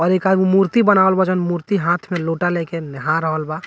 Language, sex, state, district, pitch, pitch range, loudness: Bhojpuri, male, Bihar, Muzaffarpur, 175 Hz, 165-190 Hz, -17 LUFS